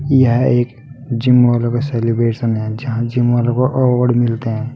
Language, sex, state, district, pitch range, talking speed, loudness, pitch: Hindi, male, Uttar Pradesh, Saharanpur, 115-125 Hz, 165 wpm, -15 LUFS, 120 Hz